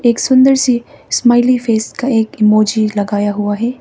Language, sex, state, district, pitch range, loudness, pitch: Hindi, female, Arunachal Pradesh, Papum Pare, 215-250 Hz, -13 LUFS, 230 Hz